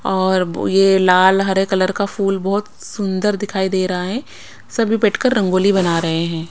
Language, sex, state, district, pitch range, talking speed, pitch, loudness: Hindi, female, Bihar, Patna, 185-200 Hz, 185 wpm, 195 Hz, -17 LUFS